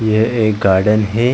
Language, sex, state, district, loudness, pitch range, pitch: Hindi, male, Chhattisgarh, Bilaspur, -14 LUFS, 105-110 Hz, 110 Hz